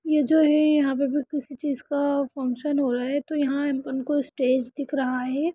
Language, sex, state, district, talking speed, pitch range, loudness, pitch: Hindi, female, Bihar, Sitamarhi, 195 wpm, 265-295 Hz, -24 LUFS, 280 Hz